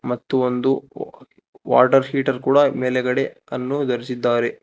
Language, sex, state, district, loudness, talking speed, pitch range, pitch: Kannada, male, Karnataka, Bangalore, -20 LUFS, 105 wpm, 125-135 Hz, 130 Hz